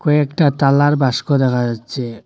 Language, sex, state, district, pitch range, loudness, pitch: Bengali, male, Assam, Hailakandi, 125-145 Hz, -16 LUFS, 135 Hz